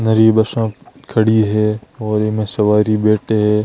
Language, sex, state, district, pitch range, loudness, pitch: Marwari, male, Rajasthan, Nagaur, 105-110 Hz, -15 LUFS, 110 Hz